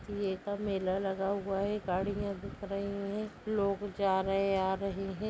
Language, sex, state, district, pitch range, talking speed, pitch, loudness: Hindi, female, Uttar Pradesh, Hamirpur, 195-205 Hz, 180 wpm, 200 Hz, -34 LUFS